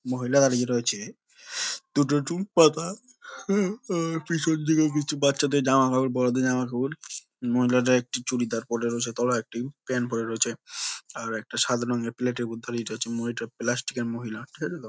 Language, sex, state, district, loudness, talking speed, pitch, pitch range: Bengali, male, West Bengal, Jhargram, -26 LUFS, 175 wpm, 125 Hz, 120-160 Hz